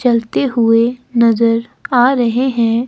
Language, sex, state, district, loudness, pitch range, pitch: Hindi, female, Himachal Pradesh, Shimla, -14 LUFS, 230-250 Hz, 235 Hz